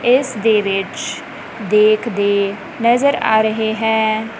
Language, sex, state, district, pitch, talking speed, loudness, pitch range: Punjabi, male, Punjab, Kapurthala, 220 Hz, 110 wpm, -16 LUFS, 210-230 Hz